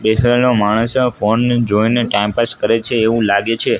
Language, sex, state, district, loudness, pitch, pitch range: Gujarati, male, Gujarat, Gandhinagar, -15 LUFS, 115 Hz, 105-120 Hz